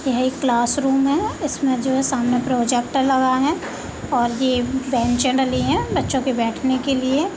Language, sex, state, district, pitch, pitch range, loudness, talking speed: Hindi, female, Uttar Pradesh, Deoria, 260 Hz, 250-270 Hz, -20 LUFS, 170 wpm